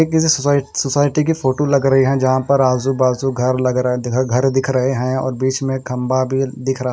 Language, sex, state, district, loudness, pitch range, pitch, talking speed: Hindi, male, Haryana, Rohtak, -17 LUFS, 130-135 Hz, 130 Hz, 225 wpm